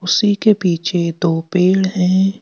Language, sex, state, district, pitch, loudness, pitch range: Hindi, male, Madhya Pradesh, Bhopal, 180 Hz, -15 LUFS, 175-190 Hz